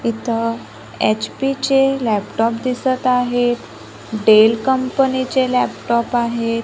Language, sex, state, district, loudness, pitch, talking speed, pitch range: Marathi, female, Maharashtra, Gondia, -17 LUFS, 240 Hz, 100 wpm, 230-260 Hz